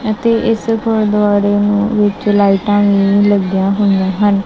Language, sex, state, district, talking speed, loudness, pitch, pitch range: Punjabi, male, Punjab, Kapurthala, 150 wpm, -13 LUFS, 205 Hz, 200-215 Hz